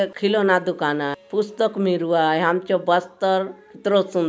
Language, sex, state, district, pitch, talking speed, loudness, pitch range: Halbi, male, Chhattisgarh, Bastar, 185 Hz, 165 wpm, -21 LUFS, 175-200 Hz